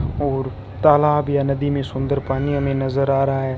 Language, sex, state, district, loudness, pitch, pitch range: Hindi, male, Rajasthan, Bikaner, -20 LUFS, 135 Hz, 135-140 Hz